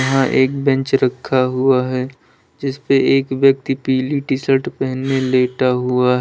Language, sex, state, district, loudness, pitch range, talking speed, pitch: Hindi, male, Uttar Pradesh, Lalitpur, -17 LUFS, 130-135 Hz, 155 wpm, 130 Hz